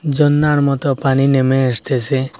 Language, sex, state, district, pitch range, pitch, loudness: Bengali, male, Assam, Hailakandi, 130-145 Hz, 135 Hz, -14 LUFS